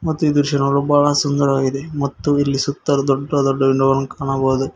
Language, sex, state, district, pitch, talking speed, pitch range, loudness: Kannada, male, Karnataka, Koppal, 140 Hz, 175 wpm, 135-145 Hz, -17 LUFS